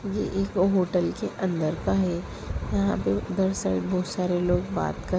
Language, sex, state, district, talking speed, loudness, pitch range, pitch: Hindi, female, Bihar, Sitamarhi, 185 wpm, -26 LUFS, 155-190 Hz, 180 Hz